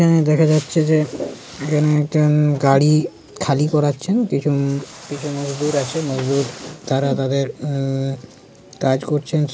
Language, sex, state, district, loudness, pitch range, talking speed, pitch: Bengali, male, West Bengal, Kolkata, -19 LUFS, 135-155 Hz, 120 wpm, 145 Hz